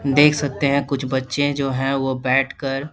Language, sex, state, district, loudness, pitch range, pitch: Hindi, male, Bihar, Lakhisarai, -20 LUFS, 135-145 Hz, 135 Hz